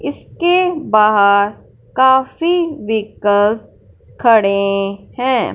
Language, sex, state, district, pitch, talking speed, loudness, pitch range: Hindi, male, Punjab, Fazilka, 225 Hz, 65 wpm, -14 LUFS, 205-290 Hz